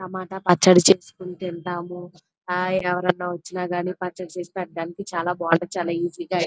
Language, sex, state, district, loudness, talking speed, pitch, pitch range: Telugu, female, Andhra Pradesh, Krishna, -23 LUFS, 165 wpm, 180 Hz, 175-185 Hz